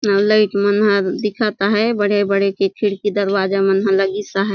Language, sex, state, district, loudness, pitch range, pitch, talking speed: Surgujia, female, Chhattisgarh, Sarguja, -17 LUFS, 195-210 Hz, 200 Hz, 160 wpm